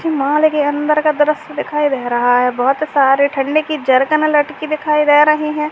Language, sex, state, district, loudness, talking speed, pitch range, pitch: Hindi, female, Bihar, Purnia, -14 LUFS, 210 wpm, 275-305 Hz, 295 Hz